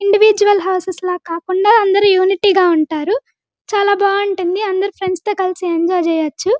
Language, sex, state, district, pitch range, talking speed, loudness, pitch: Telugu, female, Andhra Pradesh, Guntur, 360-405 Hz, 145 wpm, -15 LUFS, 385 Hz